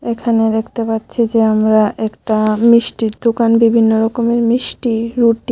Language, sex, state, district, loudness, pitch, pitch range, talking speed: Bengali, female, Tripura, West Tripura, -14 LUFS, 230 Hz, 220-235 Hz, 130 wpm